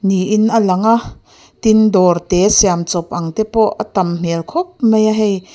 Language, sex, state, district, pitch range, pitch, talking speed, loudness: Mizo, female, Mizoram, Aizawl, 180-220 Hz, 200 Hz, 205 wpm, -14 LUFS